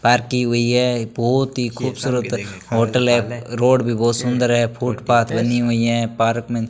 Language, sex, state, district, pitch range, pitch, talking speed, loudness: Hindi, male, Rajasthan, Bikaner, 115-125 Hz, 120 Hz, 180 wpm, -19 LUFS